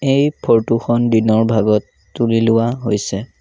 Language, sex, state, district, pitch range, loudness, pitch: Assamese, male, Assam, Sonitpur, 110-120 Hz, -16 LUFS, 115 Hz